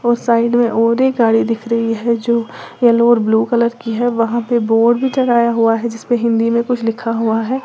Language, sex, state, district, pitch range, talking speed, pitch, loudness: Hindi, female, Uttar Pradesh, Lalitpur, 230-240 Hz, 235 wpm, 235 Hz, -15 LUFS